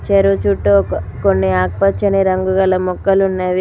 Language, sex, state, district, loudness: Telugu, female, Telangana, Mahabubabad, -15 LUFS